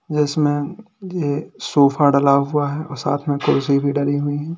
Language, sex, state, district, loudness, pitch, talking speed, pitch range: Hindi, male, Uttar Pradesh, Lalitpur, -19 LUFS, 145 Hz, 185 wpm, 140-150 Hz